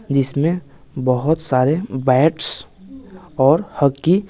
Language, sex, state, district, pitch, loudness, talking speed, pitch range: Hindi, male, Bihar, West Champaran, 140 Hz, -18 LUFS, 100 wpm, 130-165 Hz